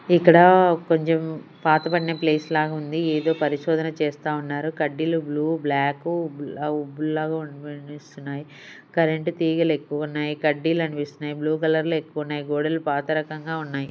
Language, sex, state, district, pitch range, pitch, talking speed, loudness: Telugu, female, Andhra Pradesh, Sri Satya Sai, 150-160 Hz, 155 Hz, 115 wpm, -23 LUFS